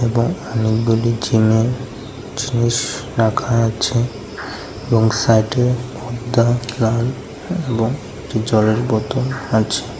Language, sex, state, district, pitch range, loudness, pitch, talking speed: Bengali, male, Tripura, West Tripura, 110-125 Hz, -18 LUFS, 115 Hz, 85 wpm